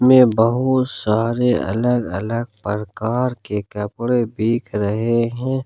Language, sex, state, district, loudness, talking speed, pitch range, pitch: Hindi, male, Jharkhand, Ranchi, -19 LUFS, 115 wpm, 105-125 Hz, 115 Hz